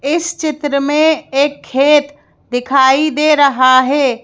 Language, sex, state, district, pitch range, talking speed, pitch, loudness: Hindi, female, Madhya Pradesh, Bhopal, 270-300 Hz, 125 wpm, 285 Hz, -13 LUFS